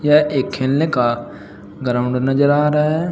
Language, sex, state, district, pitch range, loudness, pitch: Hindi, male, Uttar Pradesh, Saharanpur, 125-150 Hz, -17 LUFS, 135 Hz